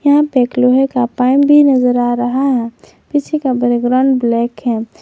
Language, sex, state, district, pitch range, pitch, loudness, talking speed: Hindi, female, Jharkhand, Garhwa, 240-270 Hz, 250 Hz, -13 LUFS, 190 wpm